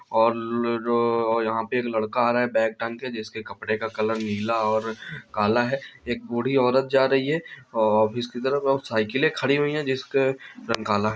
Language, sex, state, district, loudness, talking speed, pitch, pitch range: Hindi, male, Chhattisgarh, Bilaspur, -24 LUFS, 190 wpm, 120 Hz, 110-130 Hz